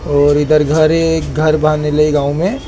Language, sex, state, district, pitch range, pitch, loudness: Hindi, male, Maharashtra, Mumbai Suburban, 150-155 Hz, 155 Hz, -13 LUFS